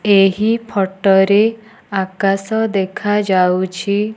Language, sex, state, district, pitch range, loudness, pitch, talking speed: Odia, female, Odisha, Nuapada, 195-215 Hz, -16 LUFS, 200 Hz, 70 wpm